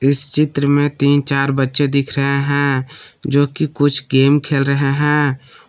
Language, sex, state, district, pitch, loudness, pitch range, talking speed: Hindi, male, Jharkhand, Palamu, 140 Hz, -16 LUFS, 140-145 Hz, 170 wpm